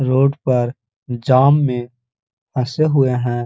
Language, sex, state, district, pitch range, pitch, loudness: Hindi, male, Uttar Pradesh, Hamirpur, 120-135 Hz, 125 Hz, -17 LUFS